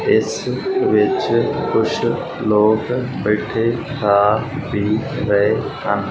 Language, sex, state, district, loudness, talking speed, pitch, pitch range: Punjabi, male, Punjab, Fazilka, -18 LUFS, 90 wpm, 110 Hz, 105-170 Hz